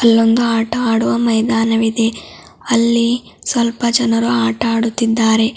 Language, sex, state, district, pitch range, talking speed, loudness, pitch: Kannada, female, Karnataka, Bidar, 225-235 Hz, 110 wpm, -15 LUFS, 230 Hz